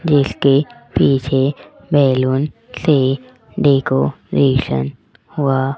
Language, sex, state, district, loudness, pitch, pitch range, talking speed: Hindi, female, Rajasthan, Jaipur, -16 LUFS, 135 Hz, 130-140 Hz, 60 wpm